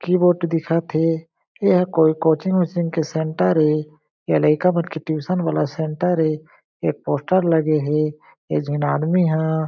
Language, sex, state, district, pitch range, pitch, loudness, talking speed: Chhattisgarhi, male, Chhattisgarh, Jashpur, 155-175 Hz, 160 Hz, -20 LUFS, 160 wpm